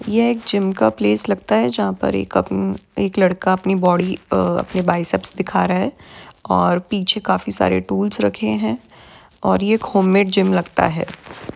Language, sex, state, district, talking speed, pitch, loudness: Hindi, female, Maharashtra, Aurangabad, 180 wpm, 180 Hz, -18 LUFS